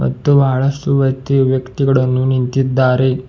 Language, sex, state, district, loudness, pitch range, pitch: Kannada, male, Karnataka, Bidar, -15 LUFS, 130-135 Hz, 130 Hz